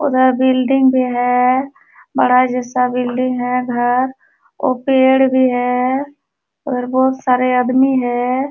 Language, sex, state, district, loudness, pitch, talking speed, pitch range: Hindi, female, Uttar Pradesh, Jalaun, -15 LUFS, 255 Hz, 125 wpm, 250-265 Hz